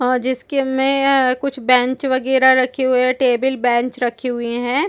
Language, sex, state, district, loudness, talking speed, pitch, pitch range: Hindi, female, Chhattisgarh, Bastar, -17 LUFS, 170 wpm, 255 Hz, 250-265 Hz